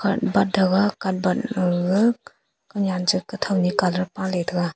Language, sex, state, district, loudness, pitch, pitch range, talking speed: Wancho, female, Arunachal Pradesh, Longding, -22 LUFS, 190 Hz, 180-200 Hz, 150 wpm